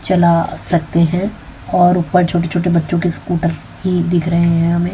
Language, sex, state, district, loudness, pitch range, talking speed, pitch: Hindi, female, Haryana, Jhajjar, -15 LUFS, 170-175 Hz, 180 wpm, 175 Hz